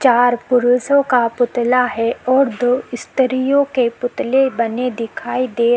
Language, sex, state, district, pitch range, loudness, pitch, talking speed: Hindi, female, Uttarakhand, Tehri Garhwal, 240-255 Hz, -17 LUFS, 245 Hz, 145 wpm